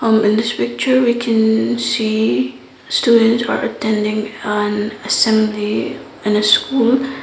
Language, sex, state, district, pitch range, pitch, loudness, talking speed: English, female, Sikkim, Gangtok, 210-225 Hz, 215 Hz, -16 LUFS, 110 wpm